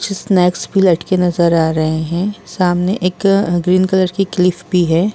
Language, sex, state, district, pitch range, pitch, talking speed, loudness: Hindi, female, Uttar Pradesh, Muzaffarnagar, 175-190 Hz, 180 Hz, 185 wpm, -15 LUFS